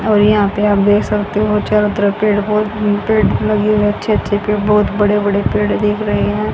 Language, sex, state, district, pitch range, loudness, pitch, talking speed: Hindi, female, Haryana, Rohtak, 205-210 Hz, -14 LUFS, 210 Hz, 210 wpm